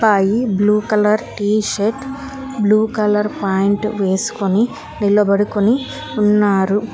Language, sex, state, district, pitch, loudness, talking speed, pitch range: Telugu, female, Telangana, Hyderabad, 210 Hz, -16 LUFS, 95 wpm, 205-220 Hz